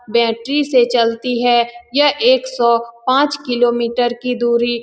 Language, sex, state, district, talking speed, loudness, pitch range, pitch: Hindi, female, Bihar, Saran, 150 wpm, -15 LUFS, 235-260 Hz, 240 Hz